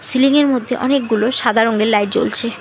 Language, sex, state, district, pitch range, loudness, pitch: Bengali, female, West Bengal, Alipurduar, 220-265 Hz, -15 LUFS, 235 Hz